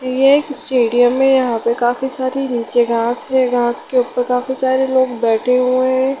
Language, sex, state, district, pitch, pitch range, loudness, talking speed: Hindi, female, Bihar, Sitamarhi, 255 Hz, 240-260 Hz, -15 LUFS, 195 wpm